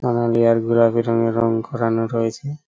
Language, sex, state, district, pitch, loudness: Bengali, male, West Bengal, Purulia, 115 Hz, -19 LUFS